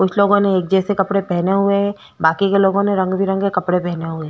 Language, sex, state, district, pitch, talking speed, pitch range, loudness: Hindi, female, Chhattisgarh, Korba, 195 Hz, 235 wpm, 180-200 Hz, -17 LUFS